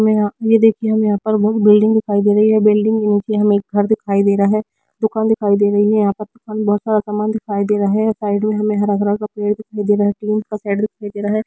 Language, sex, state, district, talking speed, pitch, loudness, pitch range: Hindi, female, Bihar, Gopalganj, 215 wpm, 210 Hz, -16 LUFS, 205-215 Hz